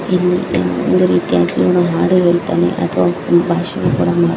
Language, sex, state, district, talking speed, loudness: Kannada, female, Karnataka, Chamarajanagar, 125 wpm, -14 LUFS